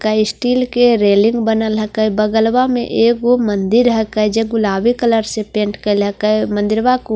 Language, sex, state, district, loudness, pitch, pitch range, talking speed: Hindi, female, Bihar, Katihar, -15 LUFS, 220 Hz, 215-235 Hz, 235 wpm